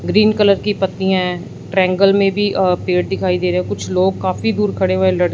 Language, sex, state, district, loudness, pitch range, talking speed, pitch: Hindi, male, Punjab, Fazilka, -16 LUFS, 180-200 Hz, 235 wpm, 190 Hz